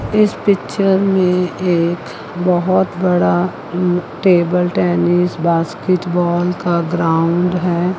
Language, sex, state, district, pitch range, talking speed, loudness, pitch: Hindi, female, Chandigarh, Chandigarh, 170-185 Hz, 100 wpm, -16 LUFS, 175 Hz